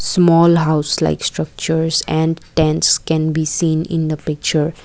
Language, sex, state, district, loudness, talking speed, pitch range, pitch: English, female, Assam, Kamrup Metropolitan, -16 LUFS, 150 wpm, 155-165 Hz, 160 Hz